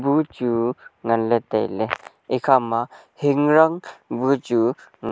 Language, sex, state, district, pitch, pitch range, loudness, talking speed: Wancho, male, Arunachal Pradesh, Longding, 130 Hz, 115-145 Hz, -21 LUFS, 80 wpm